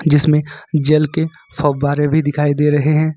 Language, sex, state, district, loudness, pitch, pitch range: Hindi, male, Jharkhand, Ranchi, -16 LUFS, 150 Hz, 145-155 Hz